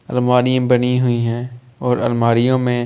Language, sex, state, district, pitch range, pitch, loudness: Hindi, male, Delhi, New Delhi, 120-125 Hz, 125 Hz, -17 LUFS